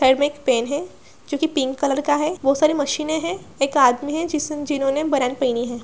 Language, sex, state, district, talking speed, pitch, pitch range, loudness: Hindi, female, Bihar, Gaya, 225 wpm, 285 Hz, 265-305 Hz, -21 LUFS